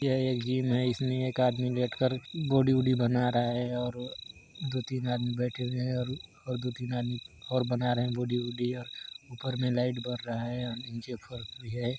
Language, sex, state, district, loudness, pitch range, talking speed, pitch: Hindi, male, Chhattisgarh, Sarguja, -31 LUFS, 120-130 Hz, 195 wpm, 125 Hz